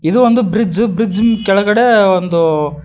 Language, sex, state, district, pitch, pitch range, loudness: Kannada, male, Karnataka, Koppal, 210 Hz, 180-230 Hz, -12 LUFS